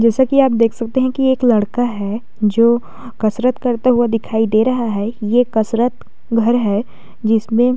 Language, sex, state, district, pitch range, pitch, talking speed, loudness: Hindi, female, Uttar Pradesh, Jalaun, 220-245 Hz, 230 Hz, 185 wpm, -16 LUFS